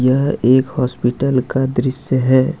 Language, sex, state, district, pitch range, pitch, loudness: Hindi, male, Jharkhand, Ranchi, 125-135 Hz, 130 Hz, -16 LUFS